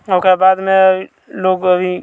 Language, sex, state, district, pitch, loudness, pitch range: Bhojpuri, male, Bihar, Muzaffarpur, 185 Hz, -13 LUFS, 185-190 Hz